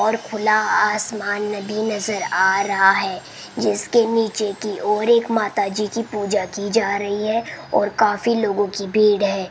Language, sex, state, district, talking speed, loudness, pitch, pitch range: Hindi, female, Rajasthan, Jaipur, 165 wpm, -20 LUFS, 210 Hz, 200-220 Hz